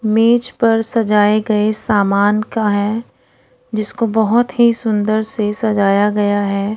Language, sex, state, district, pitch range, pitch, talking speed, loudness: Hindi, female, Odisha, Khordha, 205-225 Hz, 215 Hz, 135 wpm, -15 LUFS